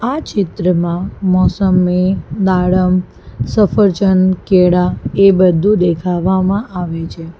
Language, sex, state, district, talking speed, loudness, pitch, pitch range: Gujarati, female, Gujarat, Valsad, 90 wpm, -14 LUFS, 185 Hz, 180-195 Hz